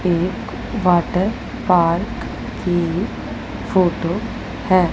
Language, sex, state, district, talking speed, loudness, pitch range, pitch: Hindi, female, Punjab, Pathankot, 75 wpm, -20 LUFS, 170-190 Hz, 180 Hz